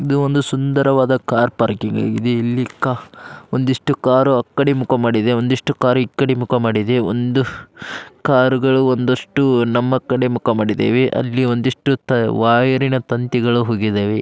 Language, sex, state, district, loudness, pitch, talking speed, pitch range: Kannada, male, Karnataka, Dharwad, -17 LUFS, 125 Hz, 125 wpm, 120-130 Hz